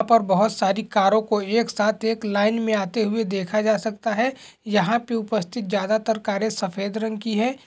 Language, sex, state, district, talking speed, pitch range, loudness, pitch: Hindi, male, Bihar, Jamui, 205 wpm, 205-225 Hz, -22 LUFS, 220 Hz